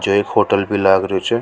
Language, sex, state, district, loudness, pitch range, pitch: Rajasthani, male, Rajasthan, Nagaur, -16 LUFS, 95-100 Hz, 100 Hz